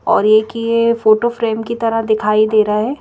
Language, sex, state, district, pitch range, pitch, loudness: Hindi, female, Madhya Pradesh, Bhopal, 215-230 Hz, 225 Hz, -14 LUFS